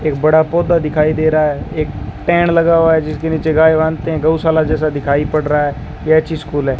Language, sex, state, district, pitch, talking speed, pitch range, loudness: Hindi, male, Rajasthan, Bikaner, 155 Hz, 240 wpm, 150-160 Hz, -14 LUFS